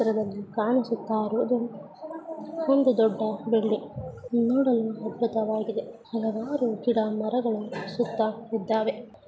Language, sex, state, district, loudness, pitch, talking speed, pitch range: Kannada, female, Karnataka, Mysore, -27 LUFS, 225 Hz, 85 wpm, 220-240 Hz